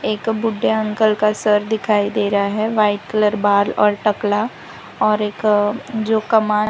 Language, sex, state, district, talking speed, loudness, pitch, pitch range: Hindi, female, Gujarat, Valsad, 180 wpm, -18 LUFS, 210 Hz, 205-220 Hz